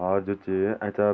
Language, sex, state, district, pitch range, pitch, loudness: Garhwali, male, Uttarakhand, Tehri Garhwal, 95-105 Hz, 100 Hz, -27 LUFS